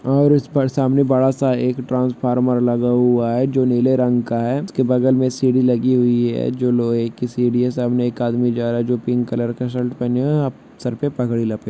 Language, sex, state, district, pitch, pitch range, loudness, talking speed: Hindi, male, Jharkhand, Jamtara, 125 Hz, 120-130 Hz, -18 LUFS, 230 wpm